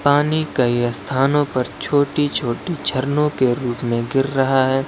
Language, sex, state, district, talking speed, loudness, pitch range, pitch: Hindi, male, Uttar Pradesh, Lalitpur, 160 wpm, -19 LUFS, 125-145 Hz, 135 Hz